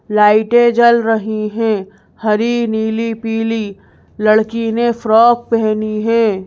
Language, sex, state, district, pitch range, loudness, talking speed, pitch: Hindi, female, Madhya Pradesh, Bhopal, 215-230 Hz, -14 LUFS, 110 wpm, 225 Hz